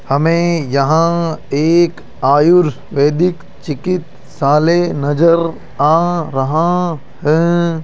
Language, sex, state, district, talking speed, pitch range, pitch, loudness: Hindi, male, Rajasthan, Jaipur, 70 wpm, 145-170 Hz, 160 Hz, -14 LUFS